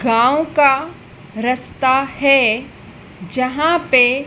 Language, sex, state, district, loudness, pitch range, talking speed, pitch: Hindi, female, Madhya Pradesh, Dhar, -15 LUFS, 240-275 Hz, 85 wpm, 260 Hz